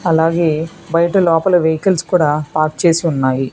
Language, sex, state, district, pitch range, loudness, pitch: Telugu, female, Telangana, Hyderabad, 155-175 Hz, -15 LUFS, 165 Hz